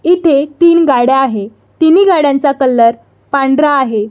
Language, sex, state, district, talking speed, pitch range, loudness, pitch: Marathi, female, Maharashtra, Solapur, 130 wpm, 255-320 Hz, -10 LUFS, 275 Hz